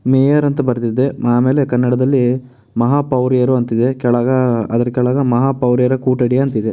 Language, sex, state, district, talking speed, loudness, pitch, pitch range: Kannada, male, Karnataka, Bellary, 145 wpm, -15 LUFS, 125 Hz, 120-130 Hz